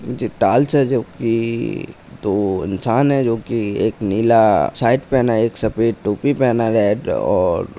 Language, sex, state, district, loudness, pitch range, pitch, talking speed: Hindi, male, Chhattisgarh, Korba, -17 LUFS, 110-135 Hz, 115 Hz, 170 wpm